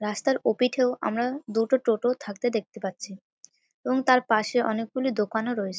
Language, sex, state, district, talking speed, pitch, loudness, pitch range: Bengali, female, West Bengal, North 24 Parganas, 145 wpm, 230 Hz, -26 LUFS, 215-255 Hz